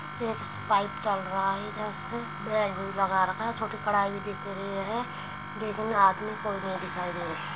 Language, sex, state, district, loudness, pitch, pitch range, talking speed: Hindi, female, Uttar Pradesh, Muzaffarnagar, -30 LUFS, 195 Hz, 195-215 Hz, 200 wpm